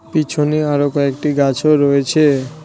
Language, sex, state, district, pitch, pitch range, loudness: Bengali, male, West Bengal, Cooch Behar, 145 Hz, 140-150 Hz, -15 LUFS